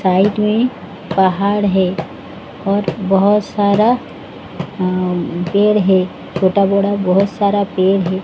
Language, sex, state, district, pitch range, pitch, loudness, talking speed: Hindi, female, Odisha, Sambalpur, 185-205 Hz, 195 Hz, -15 LUFS, 110 wpm